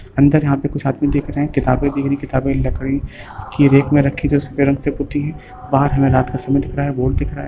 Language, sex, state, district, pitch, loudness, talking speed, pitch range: Hindi, male, Bihar, Lakhisarai, 140 Hz, -17 LUFS, 290 wpm, 130-145 Hz